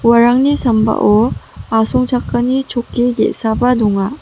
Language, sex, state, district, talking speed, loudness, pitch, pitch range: Garo, female, Meghalaya, West Garo Hills, 85 wpm, -14 LUFS, 240 Hz, 220-250 Hz